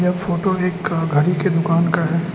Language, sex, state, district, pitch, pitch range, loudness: Hindi, male, Arunachal Pradesh, Lower Dibang Valley, 175 Hz, 165-180 Hz, -18 LUFS